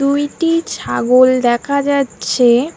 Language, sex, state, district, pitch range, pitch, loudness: Bengali, female, West Bengal, Alipurduar, 240-285 Hz, 270 Hz, -14 LUFS